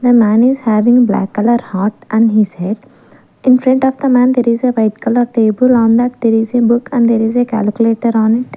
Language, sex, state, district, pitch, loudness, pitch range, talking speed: English, female, Maharashtra, Gondia, 235 Hz, -12 LUFS, 220-245 Hz, 230 wpm